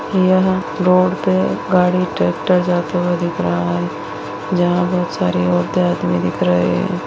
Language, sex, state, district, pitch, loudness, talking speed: Hindi, female, Chhattisgarh, Bastar, 175 Hz, -17 LUFS, 155 wpm